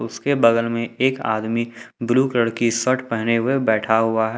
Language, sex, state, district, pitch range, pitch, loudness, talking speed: Hindi, male, Jharkhand, Ranchi, 115-125 Hz, 115 Hz, -20 LUFS, 190 wpm